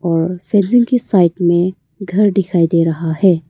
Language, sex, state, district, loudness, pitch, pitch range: Hindi, female, Arunachal Pradesh, Papum Pare, -14 LUFS, 180 Hz, 170-195 Hz